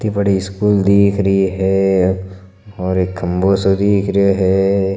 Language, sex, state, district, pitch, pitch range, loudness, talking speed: Marwari, male, Rajasthan, Nagaur, 95 Hz, 95-100 Hz, -15 LUFS, 35 wpm